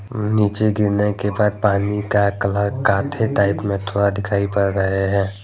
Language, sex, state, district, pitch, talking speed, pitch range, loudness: Hindi, male, Jharkhand, Deoghar, 100 Hz, 165 wpm, 100-105 Hz, -19 LUFS